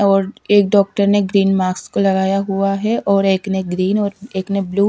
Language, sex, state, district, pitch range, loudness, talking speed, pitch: Hindi, female, Punjab, Kapurthala, 195-200 Hz, -16 LUFS, 220 wpm, 195 Hz